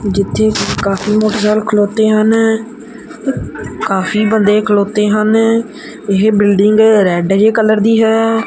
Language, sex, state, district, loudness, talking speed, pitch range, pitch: Punjabi, male, Punjab, Kapurthala, -12 LUFS, 115 wpm, 205-220 Hz, 215 Hz